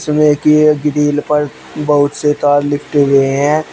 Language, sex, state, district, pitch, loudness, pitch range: Hindi, male, Uttar Pradesh, Shamli, 150 Hz, -13 LUFS, 145-150 Hz